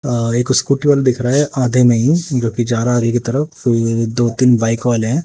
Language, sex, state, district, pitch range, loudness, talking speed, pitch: Hindi, male, Haryana, Jhajjar, 115-135 Hz, -15 LUFS, 285 wpm, 120 Hz